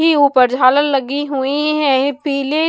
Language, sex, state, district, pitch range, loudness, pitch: Hindi, female, Punjab, Kapurthala, 270-295 Hz, -15 LUFS, 280 Hz